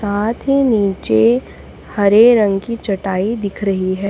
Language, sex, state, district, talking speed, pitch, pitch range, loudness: Hindi, female, Chhattisgarh, Raipur, 145 wpm, 205 Hz, 195-230 Hz, -15 LUFS